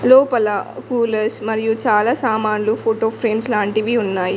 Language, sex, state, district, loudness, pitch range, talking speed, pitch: Telugu, female, Telangana, Mahabubabad, -18 LUFS, 215-235 Hz, 125 wpm, 220 Hz